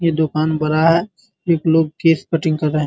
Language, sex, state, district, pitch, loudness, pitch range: Hindi, male, Bihar, Muzaffarpur, 160 Hz, -17 LUFS, 155-165 Hz